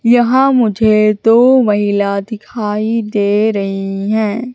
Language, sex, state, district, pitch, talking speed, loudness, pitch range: Hindi, female, Madhya Pradesh, Katni, 215 Hz, 105 wpm, -13 LUFS, 205-235 Hz